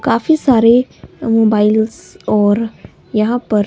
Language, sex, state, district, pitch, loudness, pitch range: Hindi, male, Himachal Pradesh, Shimla, 225 Hz, -14 LUFS, 215-240 Hz